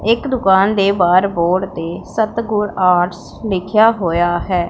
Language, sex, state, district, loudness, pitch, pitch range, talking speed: Punjabi, female, Punjab, Pathankot, -15 LUFS, 190 Hz, 175-215 Hz, 140 wpm